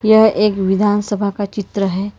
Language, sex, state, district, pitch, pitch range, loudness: Hindi, female, Karnataka, Bangalore, 205 Hz, 200-210 Hz, -16 LUFS